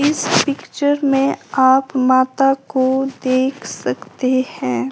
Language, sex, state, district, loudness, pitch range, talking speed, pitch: Hindi, female, Himachal Pradesh, Shimla, -17 LUFS, 255-275 Hz, 110 wpm, 260 Hz